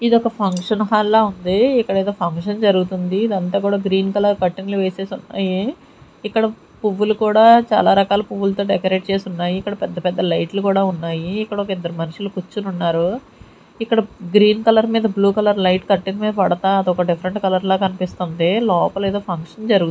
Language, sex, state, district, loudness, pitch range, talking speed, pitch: Telugu, female, Andhra Pradesh, Sri Satya Sai, -18 LUFS, 185-210 Hz, 170 wpm, 195 Hz